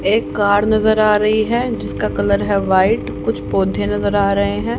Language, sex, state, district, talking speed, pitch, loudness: Hindi, female, Haryana, Rohtak, 200 wpm, 185 Hz, -16 LUFS